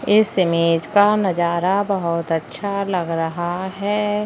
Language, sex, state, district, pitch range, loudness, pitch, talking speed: Hindi, female, Maharashtra, Chandrapur, 170-205 Hz, -19 LUFS, 185 Hz, 125 wpm